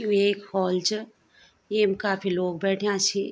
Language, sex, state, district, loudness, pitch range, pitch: Garhwali, female, Uttarakhand, Tehri Garhwal, -25 LUFS, 190-205 Hz, 200 Hz